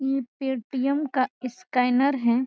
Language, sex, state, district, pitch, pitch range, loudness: Hindi, female, Uttar Pradesh, Ghazipur, 260 Hz, 250-270 Hz, -25 LUFS